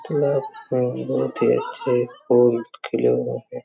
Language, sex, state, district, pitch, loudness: Hindi, male, Chhattisgarh, Raigarh, 125 Hz, -22 LUFS